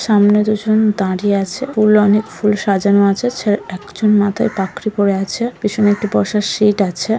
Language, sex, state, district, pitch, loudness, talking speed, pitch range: Bengali, female, West Bengal, Kolkata, 210 Hz, -15 LUFS, 160 wpm, 200-215 Hz